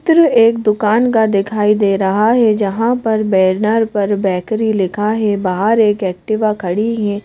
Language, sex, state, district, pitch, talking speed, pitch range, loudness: Hindi, female, Madhya Pradesh, Bhopal, 210 Hz, 155 wpm, 200-225 Hz, -14 LUFS